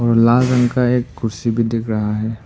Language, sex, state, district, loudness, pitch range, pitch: Hindi, male, Arunachal Pradesh, Papum Pare, -17 LUFS, 115-125 Hz, 115 Hz